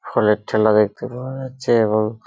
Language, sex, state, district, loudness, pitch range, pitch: Bengali, male, West Bengal, Purulia, -19 LUFS, 105-125 Hz, 110 Hz